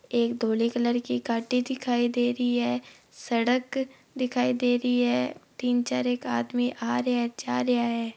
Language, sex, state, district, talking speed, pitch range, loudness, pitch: Marwari, female, Rajasthan, Nagaur, 160 wpm, 230-245 Hz, -27 LUFS, 240 Hz